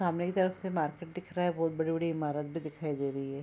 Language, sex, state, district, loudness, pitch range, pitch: Hindi, female, Bihar, Araria, -33 LUFS, 150-175 Hz, 165 Hz